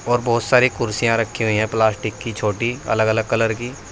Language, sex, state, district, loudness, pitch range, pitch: Hindi, male, Uttar Pradesh, Saharanpur, -19 LUFS, 110-120 Hz, 115 Hz